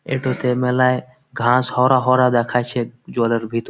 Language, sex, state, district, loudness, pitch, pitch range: Bengali, male, West Bengal, Malda, -18 LUFS, 125 Hz, 120-130 Hz